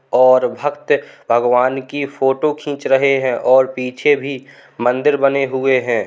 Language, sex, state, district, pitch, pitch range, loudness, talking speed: Hindi, male, Uttar Pradesh, Hamirpur, 135 Hz, 130-140 Hz, -16 LUFS, 150 wpm